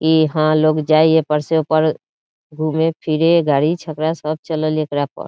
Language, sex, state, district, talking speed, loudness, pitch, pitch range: Bhojpuri, female, Bihar, Saran, 205 wpm, -17 LUFS, 155 Hz, 155-160 Hz